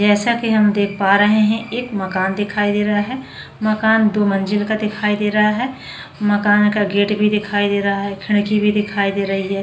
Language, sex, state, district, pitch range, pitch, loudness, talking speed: Hindi, female, Maharashtra, Chandrapur, 200-210 Hz, 205 Hz, -17 LUFS, 220 wpm